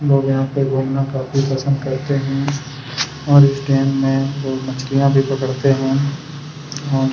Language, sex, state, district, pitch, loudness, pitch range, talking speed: Hindi, male, Chhattisgarh, Kabirdham, 135 Hz, -18 LUFS, 135-140 Hz, 150 wpm